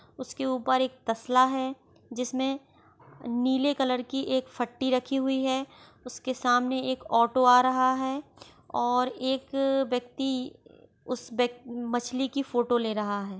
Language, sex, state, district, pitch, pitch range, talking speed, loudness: Hindi, female, Bihar, Gopalganj, 255 Hz, 245-265 Hz, 145 wpm, -27 LUFS